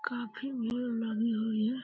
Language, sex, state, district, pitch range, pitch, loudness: Hindi, female, Uttar Pradesh, Deoria, 225-245 Hz, 230 Hz, -33 LUFS